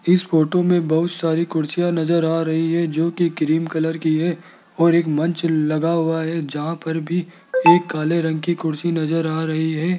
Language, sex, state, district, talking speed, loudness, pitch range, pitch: Hindi, male, Rajasthan, Jaipur, 205 wpm, -20 LUFS, 160-170 Hz, 165 Hz